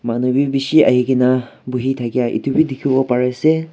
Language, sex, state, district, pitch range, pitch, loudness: Nagamese, male, Nagaland, Kohima, 125-135 Hz, 130 Hz, -16 LUFS